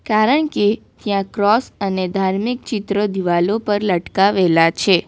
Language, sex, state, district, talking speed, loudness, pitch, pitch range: Gujarati, female, Gujarat, Valsad, 130 wpm, -18 LUFS, 200 Hz, 190-215 Hz